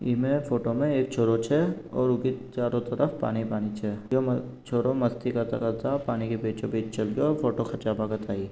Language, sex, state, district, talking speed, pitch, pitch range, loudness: Marwari, male, Rajasthan, Nagaur, 190 wpm, 120 Hz, 110-130 Hz, -28 LUFS